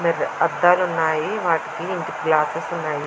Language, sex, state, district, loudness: Telugu, female, Andhra Pradesh, Visakhapatnam, -21 LUFS